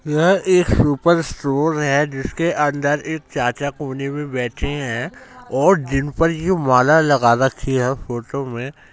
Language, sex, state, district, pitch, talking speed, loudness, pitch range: Hindi, male, Uttar Pradesh, Jyotiba Phule Nagar, 145 Hz, 160 wpm, -18 LUFS, 130-160 Hz